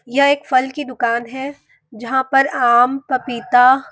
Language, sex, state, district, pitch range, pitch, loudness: Hindi, female, Uttar Pradesh, Varanasi, 245-270 Hz, 260 Hz, -16 LUFS